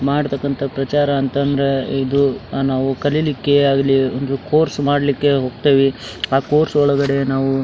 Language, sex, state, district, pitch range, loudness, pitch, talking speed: Kannada, male, Karnataka, Dharwad, 135-145 Hz, -17 LUFS, 140 Hz, 135 wpm